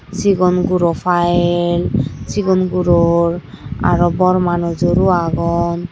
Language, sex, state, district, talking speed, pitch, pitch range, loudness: Chakma, male, Tripura, Dhalai, 100 wpm, 175 Hz, 170-180 Hz, -15 LUFS